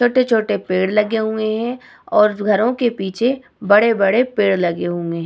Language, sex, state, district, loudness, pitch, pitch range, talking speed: Hindi, female, Bihar, Vaishali, -17 LUFS, 215 Hz, 195-240 Hz, 170 wpm